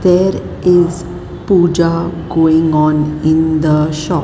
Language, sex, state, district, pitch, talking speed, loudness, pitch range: English, male, Maharashtra, Mumbai Suburban, 165 Hz, 115 wpm, -13 LUFS, 155-175 Hz